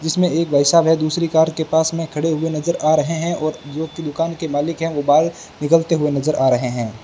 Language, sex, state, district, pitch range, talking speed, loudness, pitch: Hindi, male, Rajasthan, Bikaner, 150-165 Hz, 265 wpm, -18 LUFS, 160 Hz